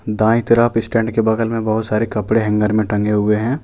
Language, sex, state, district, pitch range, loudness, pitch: Hindi, male, Jharkhand, Deoghar, 105-115 Hz, -17 LUFS, 110 Hz